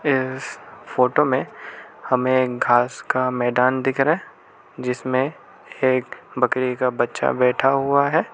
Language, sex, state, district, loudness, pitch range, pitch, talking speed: Hindi, male, Arunachal Pradesh, Lower Dibang Valley, -21 LUFS, 125-135 Hz, 130 Hz, 130 wpm